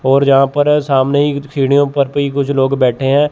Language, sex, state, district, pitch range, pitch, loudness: Hindi, male, Chandigarh, Chandigarh, 135-145 Hz, 140 Hz, -13 LUFS